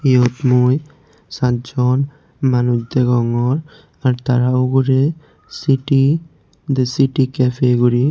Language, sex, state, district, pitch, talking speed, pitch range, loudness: Chakma, male, Tripura, West Tripura, 130 Hz, 95 wpm, 125-140 Hz, -17 LUFS